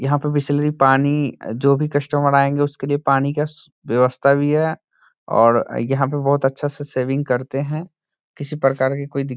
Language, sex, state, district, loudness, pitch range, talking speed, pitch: Hindi, male, Bihar, Saran, -19 LUFS, 135-145 Hz, 200 wpm, 140 Hz